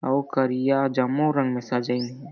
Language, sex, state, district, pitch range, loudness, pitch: Chhattisgarhi, male, Chhattisgarh, Jashpur, 125-135 Hz, -24 LUFS, 130 Hz